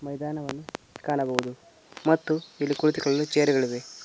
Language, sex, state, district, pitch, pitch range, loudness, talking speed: Kannada, male, Karnataka, Koppal, 145 Hz, 135-150 Hz, -26 LUFS, 105 wpm